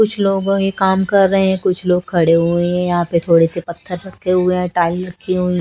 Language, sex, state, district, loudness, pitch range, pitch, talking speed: Hindi, female, Chhattisgarh, Raipur, -16 LUFS, 175-190 Hz, 180 Hz, 235 wpm